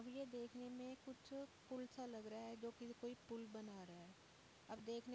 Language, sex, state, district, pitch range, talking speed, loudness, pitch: Hindi, female, Uttar Pradesh, Jyotiba Phule Nagar, 225-250 Hz, 210 wpm, -54 LUFS, 240 Hz